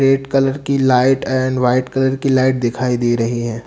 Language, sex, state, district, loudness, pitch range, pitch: Hindi, male, Bihar, Katihar, -16 LUFS, 125-135 Hz, 130 Hz